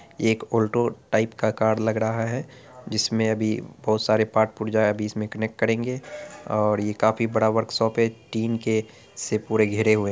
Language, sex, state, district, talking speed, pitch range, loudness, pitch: Angika, male, Bihar, Araria, 185 wpm, 110-115 Hz, -24 LUFS, 110 Hz